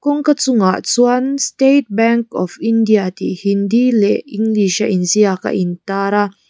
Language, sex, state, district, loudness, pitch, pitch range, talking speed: Mizo, female, Mizoram, Aizawl, -15 LUFS, 215 Hz, 200-245 Hz, 155 wpm